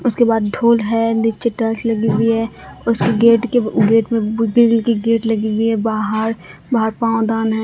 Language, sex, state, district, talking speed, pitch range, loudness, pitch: Hindi, female, Bihar, Katihar, 190 wpm, 220-230 Hz, -16 LUFS, 225 Hz